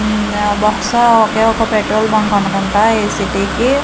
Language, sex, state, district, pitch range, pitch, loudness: Telugu, female, Andhra Pradesh, Manyam, 205-225 Hz, 215 Hz, -13 LUFS